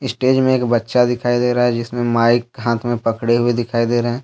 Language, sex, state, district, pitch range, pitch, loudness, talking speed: Hindi, male, Jharkhand, Deoghar, 115-125 Hz, 120 Hz, -17 LUFS, 240 wpm